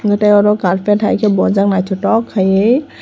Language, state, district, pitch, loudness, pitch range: Kokborok, Tripura, West Tripura, 205 Hz, -13 LUFS, 190-210 Hz